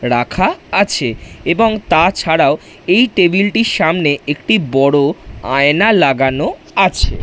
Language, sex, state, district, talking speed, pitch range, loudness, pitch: Bengali, male, West Bengal, Dakshin Dinajpur, 175 wpm, 140-205 Hz, -13 LUFS, 155 Hz